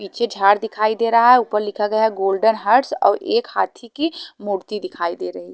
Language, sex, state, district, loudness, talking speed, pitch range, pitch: Hindi, female, Haryana, Charkhi Dadri, -18 LUFS, 240 wpm, 200-240 Hz, 215 Hz